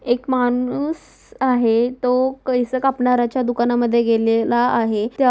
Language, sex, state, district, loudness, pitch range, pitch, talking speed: Marathi, female, Maharashtra, Aurangabad, -19 LUFS, 235-255 Hz, 245 Hz, 115 wpm